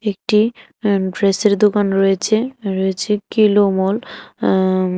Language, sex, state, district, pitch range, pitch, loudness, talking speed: Bengali, female, Tripura, West Tripura, 190-210 Hz, 205 Hz, -17 LUFS, 120 wpm